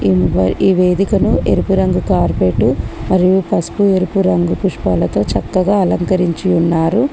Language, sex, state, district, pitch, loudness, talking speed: Telugu, female, Telangana, Komaram Bheem, 180 Hz, -14 LUFS, 110 wpm